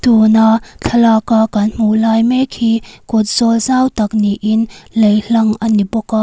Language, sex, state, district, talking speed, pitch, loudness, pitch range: Mizo, female, Mizoram, Aizawl, 175 wpm, 225 Hz, -13 LUFS, 215-230 Hz